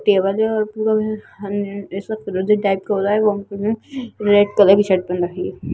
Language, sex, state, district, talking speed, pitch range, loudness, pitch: Hindi, male, Bihar, Gaya, 115 wpm, 195-215 Hz, -18 LUFS, 205 Hz